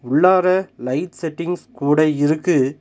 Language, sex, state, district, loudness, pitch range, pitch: Tamil, male, Tamil Nadu, Nilgiris, -18 LUFS, 140-180 Hz, 155 Hz